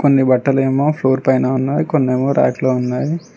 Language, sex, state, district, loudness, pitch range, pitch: Telugu, male, Telangana, Mahabubabad, -16 LUFS, 130-145 Hz, 135 Hz